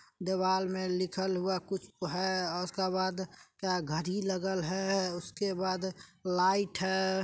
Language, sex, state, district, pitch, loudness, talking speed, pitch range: Maithili, female, Bihar, Supaul, 185 Hz, -33 LUFS, 140 wpm, 180-190 Hz